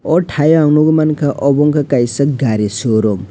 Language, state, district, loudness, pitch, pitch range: Kokborok, Tripura, West Tripura, -13 LUFS, 145 Hz, 120-150 Hz